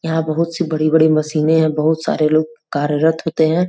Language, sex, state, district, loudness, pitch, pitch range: Hindi, female, Uttar Pradesh, Gorakhpur, -16 LUFS, 160 Hz, 155-160 Hz